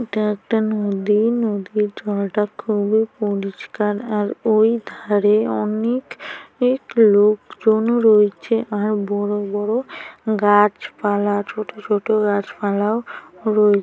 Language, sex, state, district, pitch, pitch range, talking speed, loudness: Bengali, female, West Bengal, Paschim Medinipur, 210 Hz, 205-220 Hz, 105 wpm, -19 LUFS